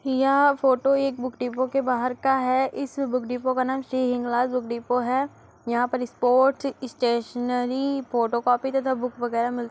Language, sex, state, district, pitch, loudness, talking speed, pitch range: Hindi, female, Uttar Pradesh, Muzaffarnagar, 255 Hz, -24 LUFS, 180 wpm, 245-265 Hz